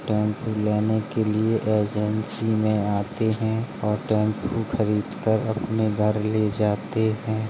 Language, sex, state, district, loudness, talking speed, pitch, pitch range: Hindi, male, Uttar Pradesh, Jalaun, -24 LUFS, 130 wpm, 110 Hz, 105-110 Hz